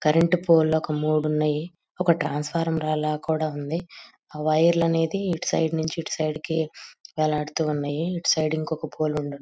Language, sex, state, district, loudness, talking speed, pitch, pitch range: Telugu, female, Andhra Pradesh, Guntur, -24 LUFS, 140 wpm, 155 Hz, 150-165 Hz